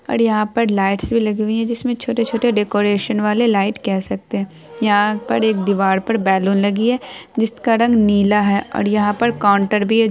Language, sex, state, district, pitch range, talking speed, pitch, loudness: Hindi, female, Bihar, Araria, 200-230 Hz, 220 wpm, 210 Hz, -17 LUFS